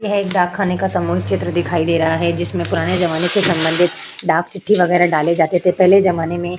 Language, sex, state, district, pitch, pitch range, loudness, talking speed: Hindi, female, Uttar Pradesh, Hamirpur, 175 Hz, 165-185 Hz, -16 LUFS, 235 wpm